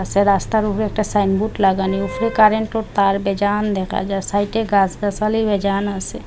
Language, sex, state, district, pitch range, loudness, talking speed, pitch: Bengali, female, Assam, Hailakandi, 195-215 Hz, -18 LUFS, 155 wpm, 205 Hz